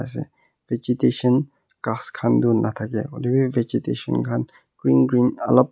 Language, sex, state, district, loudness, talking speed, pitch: Nagamese, male, Nagaland, Kohima, -22 LUFS, 135 wpm, 115 Hz